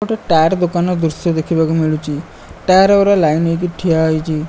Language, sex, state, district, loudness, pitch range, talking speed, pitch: Odia, male, Odisha, Malkangiri, -15 LUFS, 160-180 Hz, 160 wpm, 165 Hz